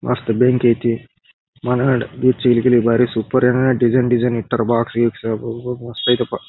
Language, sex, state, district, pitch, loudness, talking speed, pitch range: Kannada, male, Karnataka, Bijapur, 120 Hz, -17 LUFS, 175 wpm, 115-125 Hz